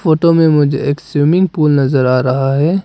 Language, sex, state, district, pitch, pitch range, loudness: Hindi, male, Arunachal Pradesh, Papum Pare, 150 Hz, 140-165 Hz, -12 LUFS